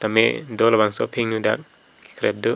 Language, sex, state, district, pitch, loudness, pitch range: Karbi, male, Assam, Karbi Anglong, 110 Hz, -21 LUFS, 110-115 Hz